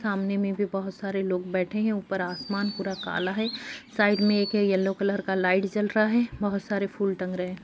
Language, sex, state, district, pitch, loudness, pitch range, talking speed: Hindi, female, Bihar, Saharsa, 200 Hz, -27 LUFS, 190-205 Hz, 235 wpm